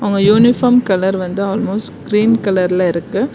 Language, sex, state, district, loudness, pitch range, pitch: Tamil, female, Karnataka, Bangalore, -14 LUFS, 190-225 Hz, 200 Hz